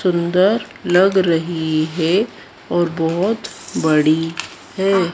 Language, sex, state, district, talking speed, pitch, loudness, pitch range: Hindi, female, Madhya Pradesh, Dhar, 95 wpm, 175 Hz, -18 LUFS, 165-190 Hz